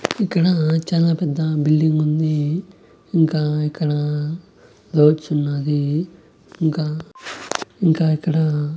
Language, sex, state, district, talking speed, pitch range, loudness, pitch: Telugu, male, Andhra Pradesh, Annamaya, 80 wpm, 150-165 Hz, -19 LUFS, 155 Hz